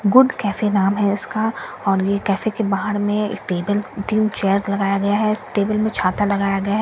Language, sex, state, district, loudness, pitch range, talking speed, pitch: Hindi, female, Bihar, Katihar, -20 LUFS, 200-215 Hz, 220 wpm, 205 Hz